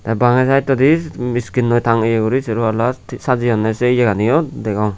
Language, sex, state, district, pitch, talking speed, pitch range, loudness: Chakma, male, Tripura, Unakoti, 120 Hz, 145 wpm, 115-130 Hz, -16 LUFS